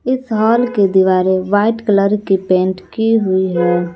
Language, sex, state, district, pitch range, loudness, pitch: Hindi, female, Jharkhand, Palamu, 185-220 Hz, -14 LUFS, 195 Hz